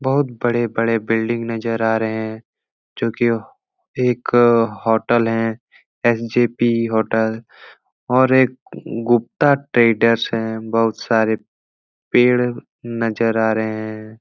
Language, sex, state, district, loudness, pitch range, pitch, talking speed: Hindi, male, Uttar Pradesh, Etah, -18 LUFS, 110-120 Hz, 115 Hz, 115 wpm